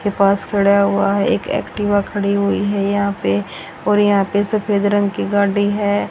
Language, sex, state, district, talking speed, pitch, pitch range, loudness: Hindi, female, Haryana, Rohtak, 195 wpm, 200 Hz, 200-205 Hz, -17 LUFS